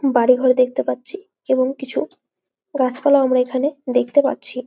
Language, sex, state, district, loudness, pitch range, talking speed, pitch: Bengali, female, West Bengal, Jalpaiguri, -18 LUFS, 255-280 Hz, 130 wpm, 260 Hz